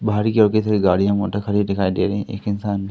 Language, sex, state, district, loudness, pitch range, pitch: Hindi, male, Madhya Pradesh, Katni, -19 LUFS, 100-105 Hz, 100 Hz